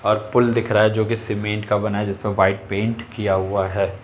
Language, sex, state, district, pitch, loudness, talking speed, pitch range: Hindi, male, Uttar Pradesh, Etah, 105 Hz, -20 LUFS, 265 wpm, 100-110 Hz